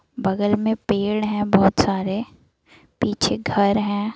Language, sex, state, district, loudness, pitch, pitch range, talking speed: Hindi, female, Bihar, Saran, -21 LUFS, 205 Hz, 195-215 Hz, 130 wpm